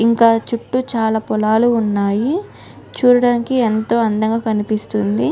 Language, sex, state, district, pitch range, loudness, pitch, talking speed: Telugu, female, Telangana, Nalgonda, 215-240 Hz, -16 LUFS, 225 Hz, 100 wpm